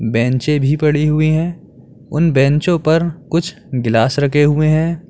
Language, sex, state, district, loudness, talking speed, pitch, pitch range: Hindi, male, Uttar Pradesh, Lalitpur, -15 LUFS, 155 wpm, 150 Hz, 135-160 Hz